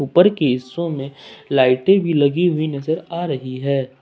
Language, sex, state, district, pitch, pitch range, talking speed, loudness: Hindi, male, Jharkhand, Ranchi, 145 Hz, 135-170 Hz, 195 wpm, -18 LUFS